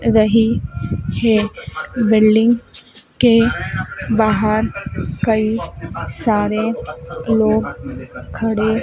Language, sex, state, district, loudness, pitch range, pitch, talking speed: Hindi, female, Madhya Pradesh, Dhar, -17 LUFS, 215-225 Hz, 220 Hz, 60 wpm